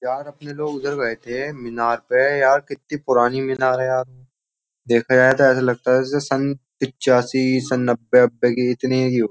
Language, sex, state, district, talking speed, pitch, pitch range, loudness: Hindi, male, Uttar Pradesh, Jyotiba Phule Nagar, 185 wpm, 130 Hz, 125-135 Hz, -19 LUFS